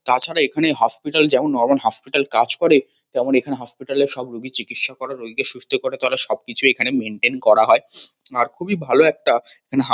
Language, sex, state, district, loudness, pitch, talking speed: Bengali, male, West Bengal, North 24 Parganas, -17 LUFS, 140 Hz, 195 wpm